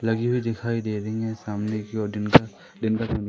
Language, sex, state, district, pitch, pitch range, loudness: Hindi, male, Madhya Pradesh, Umaria, 110 Hz, 105-115 Hz, -24 LUFS